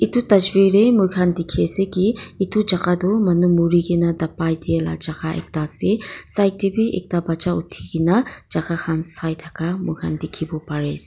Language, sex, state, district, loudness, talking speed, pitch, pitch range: Nagamese, female, Nagaland, Kohima, -20 LUFS, 170 wpm, 175 Hz, 160-195 Hz